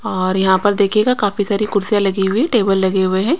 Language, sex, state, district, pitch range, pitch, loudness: Hindi, female, Haryana, Rohtak, 190-215 Hz, 200 Hz, -16 LUFS